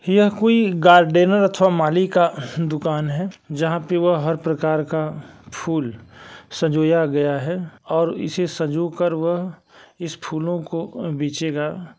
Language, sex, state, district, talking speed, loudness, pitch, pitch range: Hindi, male, Uttar Pradesh, Varanasi, 140 wpm, -20 LUFS, 165 Hz, 155-175 Hz